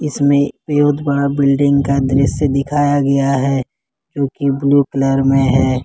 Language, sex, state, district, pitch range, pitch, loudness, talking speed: Hindi, male, Jharkhand, Ranchi, 135-140 Hz, 140 Hz, -15 LUFS, 155 wpm